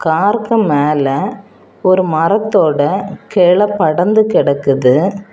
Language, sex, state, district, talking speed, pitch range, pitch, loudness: Tamil, female, Tamil Nadu, Kanyakumari, 80 wpm, 150-205 Hz, 185 Hz, -13 LUFS